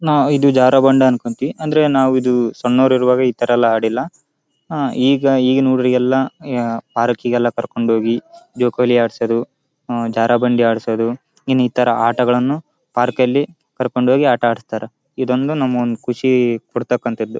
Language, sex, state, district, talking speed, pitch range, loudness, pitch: Kannada, male, Karnataka, Raichur, 125 wpm, 120-135 Hz, -16 LUFS, 125 Hz